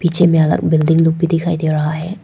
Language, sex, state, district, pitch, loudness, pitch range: Hindi, female, Arunachal Pradesh, Papum Pare, 165 Hz, -14 LUFS, 160-170 Hz